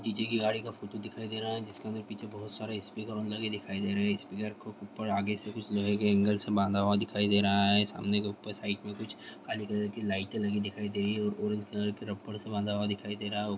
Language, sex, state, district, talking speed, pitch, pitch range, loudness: Hindi, male, Bihar, Vaishali, 315 wpm, 105 Hz, 100-110 Hz, -32 LUFS